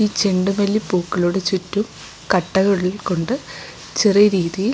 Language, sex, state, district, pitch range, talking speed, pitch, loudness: Malayalam, female, Kerala, Kozhikode, 180-205 Hz, 115 wpm, 190 Hz, -19 LUFS